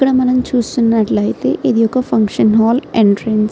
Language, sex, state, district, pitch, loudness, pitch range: Telugu, female, Andhra Pradesh, Srikakulam, 225 Hz, -14 LUFS, 215-250 Hz